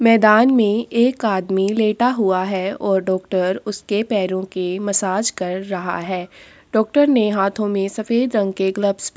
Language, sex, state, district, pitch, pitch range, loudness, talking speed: Hindi, female, Uttar Pradesh, Jyotiba Phule Nagar, 200 Hz, 190-220 Hz, -18 LUFS, 165 wpm